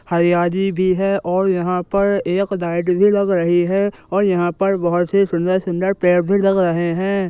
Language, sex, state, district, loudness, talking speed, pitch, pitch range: Hindi, male, Uttar Pradesh, Jyotiba Phule Nagar, -17 LUFS, 190 wpm, 185 Hz, 175-195 Hz